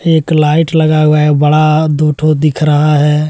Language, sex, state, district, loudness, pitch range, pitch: Hindi, male, Jharkhand, Deoghar, -10 LUFS, 150-155 Hz, 155 Hz